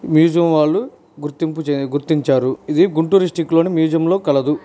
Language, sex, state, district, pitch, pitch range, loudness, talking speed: Telugu, male, Andhra Pradesh, Guntur, 160 Hz, 150-165 Hz, -16 LUFS, 155 wpm